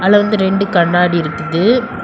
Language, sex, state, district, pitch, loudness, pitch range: Tamil, female, Tamil Nadu, Kanyakumari, 190 Hz, -14 LUFS, 170-205 Hz